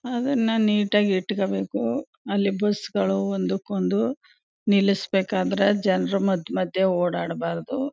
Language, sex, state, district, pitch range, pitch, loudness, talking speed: Kannada, female, Karnataka, Chamarajanagar, 185-210 Hz, 195 Hz, -24 LUFS, 100 wpm